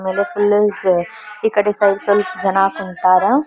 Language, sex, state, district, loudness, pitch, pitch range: Kannada, female, Karnataka, Belgaum, -16 LUFS, 205 Hz, 190-210 Hz